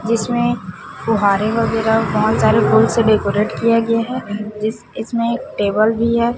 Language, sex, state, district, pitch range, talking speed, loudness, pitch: Hindi, female, Chhattisgarh, Raipur, 215-230 Hz, 160 wpm, -17 LUFS, 225 Hz